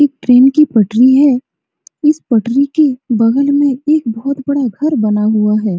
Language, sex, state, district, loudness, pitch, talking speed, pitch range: Hindi, female, Bihar, Supaul, -12 LUFS, 260 Hz, 185 wpm, 230-285 Hz